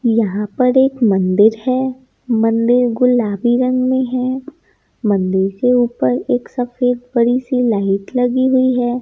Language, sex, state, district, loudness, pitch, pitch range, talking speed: Hindi, female, Bihar, East Champaran, -16 LUFS, 245 Hz, 215-255 Hz, 140 wpm